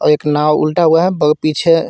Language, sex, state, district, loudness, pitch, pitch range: Hindi, male, Jharkhand, Garhwa, -13 LUFS, 155 Hz, 150-165 Hz